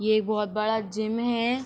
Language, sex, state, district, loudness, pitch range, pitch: Hindi, female, Uttar Pradesh, Etah, -26 LUFS, 215-235 Hz, 220 Hz